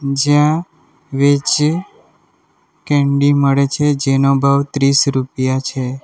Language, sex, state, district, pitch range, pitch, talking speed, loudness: Gujarati, male, Gujarat, Valsad, 135-145 Hz, 140 Hz, 100 wpm, -15 LUFS